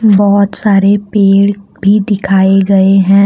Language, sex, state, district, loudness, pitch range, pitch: Hindi, female, Jharkhand, Deoghar, -9 LUFS, 195-200 Hz, 200 Hz